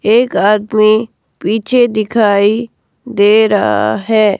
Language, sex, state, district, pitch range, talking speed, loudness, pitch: Hindi, female, Himachal Pradesh, Shimla, 205-225 Hz, 95 wpm, -12 LUFS, 215 Hz